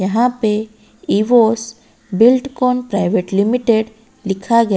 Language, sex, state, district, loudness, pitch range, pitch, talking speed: Hindi, female, Odisha, Malkangiri, -16 LUFS, 210-240 Hz, 225 Hz, 100 wpm